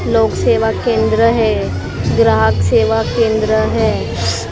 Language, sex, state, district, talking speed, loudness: Hindi, female, Maharashtra, Mumbai Suburban, 105 wpm, -14 LUFS